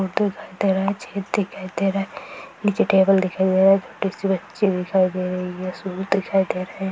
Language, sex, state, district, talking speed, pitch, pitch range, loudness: Hindi, female, Bihar, Sitamarhi, 180 wpm, 195 Hz, 185-200 Hz, -22 LUFS